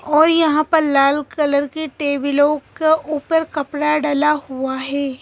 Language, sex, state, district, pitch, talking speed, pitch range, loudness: Hindi, female, Madhya Pradesh, Bhopal, 295 Hz, 150 wpm, 280-310 Hz, -17 LUFS